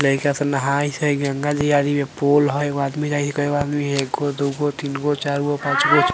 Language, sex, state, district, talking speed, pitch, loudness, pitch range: Bajjika, female, Bihar, Vaishali, 195 wpm, 145 Hz, -20 LUFS, 140-145 Hz